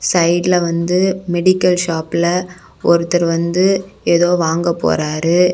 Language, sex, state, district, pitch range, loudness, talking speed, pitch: Tamil, female, Tamil Nadu, Kanyakumari, 170-180 Hz, -15 LUFS, 100 wpm, 175 Hz